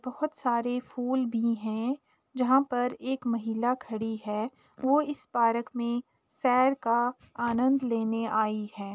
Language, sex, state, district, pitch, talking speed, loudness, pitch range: Hindi, female, Uttar Pradesh, Jalaun, 245 Hz, 140 wpm, -29 LUFS, 230-260 Hz